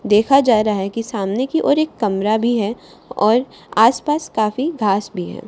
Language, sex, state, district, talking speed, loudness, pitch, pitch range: Hindi, female, Haryana, Charkhi Dadri, 210 wpm, -17 LUFS, 220 Hz, 210-260 Hz